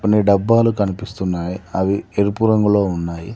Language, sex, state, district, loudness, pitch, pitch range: Telugu, male, Telangana, Mahabubabad, -18 LUFS, 100 Hz, 95-105 Hz